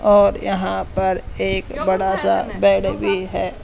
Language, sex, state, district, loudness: Hindi, male, Haryana, Charkhi Dadri, -19 LUFS